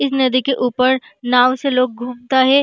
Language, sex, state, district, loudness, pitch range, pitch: Hindi, female, Uttar Pradesh, Jyotiba Phule Nagar, -16 LUFS, 250-265 Hz, 255 Hz